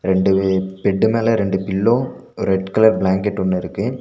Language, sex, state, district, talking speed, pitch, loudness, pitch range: Tamil, male, Tamil Nadu, Nilgiris, 135 wpm, 95 Hz, -18 LUFS, 95-105 Hz